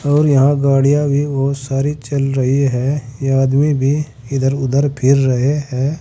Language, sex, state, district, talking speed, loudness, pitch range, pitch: Hindi, male, Uttar Pradesh, Saharanpur, 170 wpm, -15 LUFS, 135-145 Hz, 140 Hz